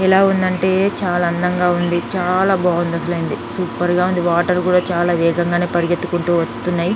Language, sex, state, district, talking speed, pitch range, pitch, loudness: Telugu, female, Telangana, Nalgonda, 145 wpm, 175-180 Hz, 175 Hz, -17 LUFS